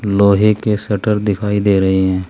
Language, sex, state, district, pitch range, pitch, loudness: Hindi, male, Uttar Pradesh, Saharanpur, 100-105 Hz, 100 Hz, -15 LUFS